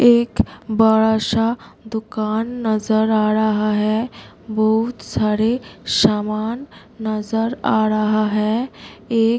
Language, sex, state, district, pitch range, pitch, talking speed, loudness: Hindi, female, Bihar, Gopalganj, 215-230 Hz, 220 Hz, 110 wpm, -19 LUFS